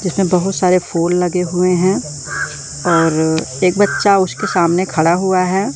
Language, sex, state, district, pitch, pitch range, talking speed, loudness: Hindi, male, Madhya Pradesh, Katni, 180 Hz, 165-190 Hz, 155 wpm, -15 LUFS